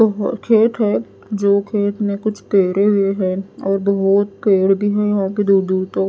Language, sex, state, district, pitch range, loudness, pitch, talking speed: Hindi, female, Odisha, Nuapada, 195-210 Hz, -17 LUFS, 200 Hz, 195 wpm